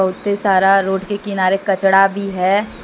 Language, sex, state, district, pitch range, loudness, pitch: Hindi, female, Jharkhand, Deoghar, 190-200 Hz, -16 LUFS, 195 Hz